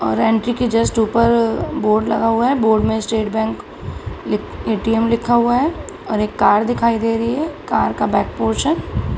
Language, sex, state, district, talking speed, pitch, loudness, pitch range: Hindi, female, Bihar, Araria, 190 wpm, 225 Hz, -17 LUFS, 220-235 Hz